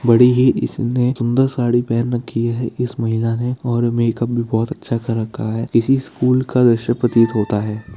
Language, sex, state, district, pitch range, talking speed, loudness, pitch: Hindi, male, Bihar, Kishanganj, 115-125 Hz, 195 wpm, -18 LUFS, 120 Hz